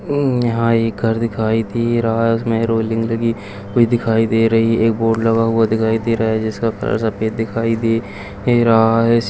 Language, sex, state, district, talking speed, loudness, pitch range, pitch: Kumaoni, male, Uttarakhand, Uttarkashi, 185 wpm, -17 LUFS, 110-115 Hz, 115 Hz